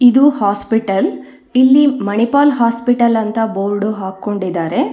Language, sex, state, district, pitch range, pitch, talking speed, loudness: Kannada, female, Karnataka, Bangalore, 205-250 Hz, 225 Hz, 95 wpm, -14 LUFS